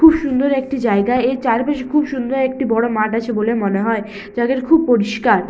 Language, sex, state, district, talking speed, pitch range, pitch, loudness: Bengali, female, West Bengal, Malda, 195 wpm, 225-270 Hz, 245 Hz, -17 LUFS